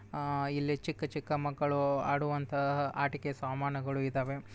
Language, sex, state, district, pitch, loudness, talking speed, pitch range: Kannada, male, Karnataka, Bijapur, 140 Hz, -34 LUFS, 120 wpm, 140-145 Hz